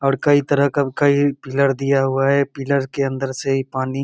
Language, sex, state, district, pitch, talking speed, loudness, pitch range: Maithili, male, Bihar, Begusarai, 140 Hz, 235 wpm, -19 LUFS, 135-140 Hz